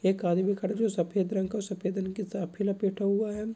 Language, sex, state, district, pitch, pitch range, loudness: Hindi, male, Bihar, Bhagalpur, 195 Hz, 190-205 Hz, -30 LUFS